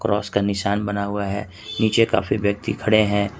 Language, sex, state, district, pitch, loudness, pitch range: Hindi, male, Jharkhand, Ranchi, 105 Hz, -21 LUFS, 100-110 Hz